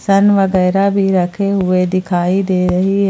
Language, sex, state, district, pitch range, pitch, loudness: Hindi, female, Jharkhand, Palamu, 185-195 Hz, 190 Hz, -14 LUFS